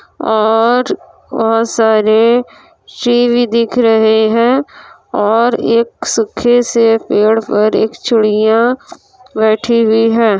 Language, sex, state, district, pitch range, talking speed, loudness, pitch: Hindi, female, Bihar, Kishanganj, 220-240 Hz, 110 wpm, -12 LUFS, 225 Hz